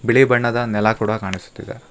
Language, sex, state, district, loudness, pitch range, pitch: Kannada, male, Karnataka, Bangalore, -18 LUFS, 105-120 Hz, 110 Hz